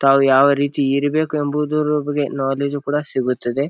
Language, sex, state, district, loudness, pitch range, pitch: Kannada, male, Karnataka, Bijapur, -18 LUFS, 135-150 Hz, 140 Hz